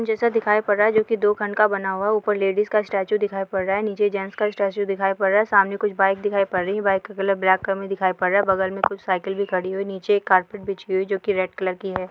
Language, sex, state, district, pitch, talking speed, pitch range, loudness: Hindi, female, Bihar, Samastipur, 195 Hz, 330 wpm, 190-210 Hz, -21 LUFS